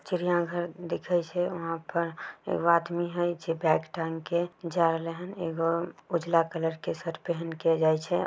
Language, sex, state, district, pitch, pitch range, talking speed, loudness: Chhattisgarhi, female, Chhattisgarh, Bilaspur, 170 Hz, 165-175 Hz, 165 wpm, -29 LUFS